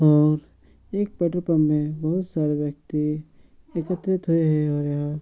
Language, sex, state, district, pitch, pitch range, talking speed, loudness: Hindi, male, Bihar, Supaul, 155 Hz, 150-170 Hz, 160 wpm, -24 LUFS